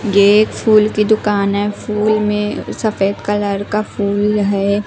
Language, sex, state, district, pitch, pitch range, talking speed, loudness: Hindi, female, Himachal Pradesh, Shimla, 210 Hz, 200-215 Hz, 160 wpm, -15 LUFS